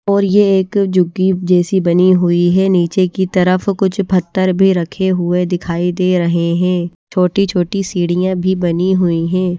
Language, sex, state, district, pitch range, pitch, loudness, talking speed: Hindi, female, Odisha, Nuapada, 175-190 Hz, 185 Hz, -14 LUFS, 170 wpm